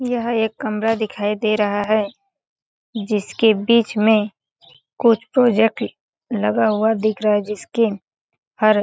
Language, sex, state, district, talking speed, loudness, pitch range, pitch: Hindi, female, Chhattisgarh, Balrampur, 140 wpm, -19 LUFS, 210-225 Hz, 215 Hz